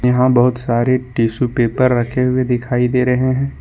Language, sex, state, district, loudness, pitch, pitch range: Hindi, male, Jharkhand, Ranchi, -16 LUFS, 125 Hz, 120-130 Hz